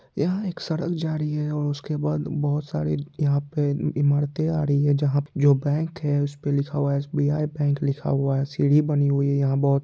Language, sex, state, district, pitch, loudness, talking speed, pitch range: Hindi, male, Bihar, Purnia, 145 Hz, -24 LUFS, 200 wpm, 140-150 Hz